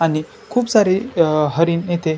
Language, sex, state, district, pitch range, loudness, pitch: Marathi, male, Maharashtra, Chandrapur, 160-190 Hz, -17 LUFS, 165 Hz